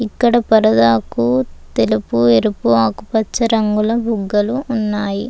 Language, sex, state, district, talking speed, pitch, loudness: Telugu, female, Telangana, Komaram Bheem, 90 wpm, 210 Hz, -16 LUFS